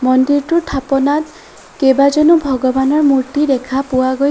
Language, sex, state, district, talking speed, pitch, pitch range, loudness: Assamese, female, Assam, Sonitpur, 110 wpm, 275 Hz, 265-295 Hz, -14 LUFS